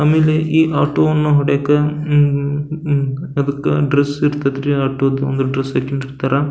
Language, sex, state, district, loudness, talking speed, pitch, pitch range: Kannada, male, Karnataka, Belgaum, -16 LUFS, 165 wpm, 145 Hz, 135-150 Hz